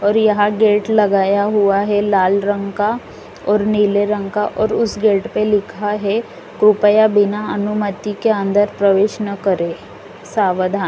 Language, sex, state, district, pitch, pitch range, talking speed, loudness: Hindi, female, Uttar Pradesh, Lalitpur, 205 Hz, 200-210 Hz, 155 wpm, -16 LUFS